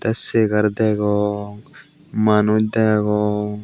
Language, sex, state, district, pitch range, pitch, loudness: Chakma, male, Tripura, Unakoti, 105-110 Hz, 105 Hz, -18 LUFS